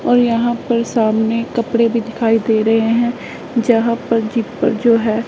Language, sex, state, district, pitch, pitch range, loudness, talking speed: Hindi, female, Punjab, Pathankot, 230 Hz, 225-235 Hz, -16 LUFS, 180 wpm